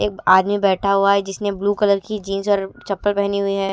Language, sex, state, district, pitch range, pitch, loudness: Hindi, female, Himachal Pradesh, Shimla, 195-205 Hz, 200 Hz, -19 LUFS